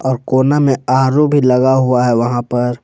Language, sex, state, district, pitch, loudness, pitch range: Hindi, male, Jharkhand, Palamu, 130 Hz, -13 LUFS, 125-135 Hz